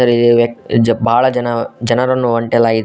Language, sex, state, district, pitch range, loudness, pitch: Kannada, male, Karnataka, Koppal, 115-120 Hz, -14 LUFS, 115 Hz